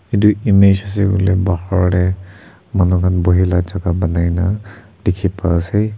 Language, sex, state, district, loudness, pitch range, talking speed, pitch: Nagamese, male, Nagaland, Kohima, -16 LUFS, 90-100 Hz, 160 wpm, 95 Hz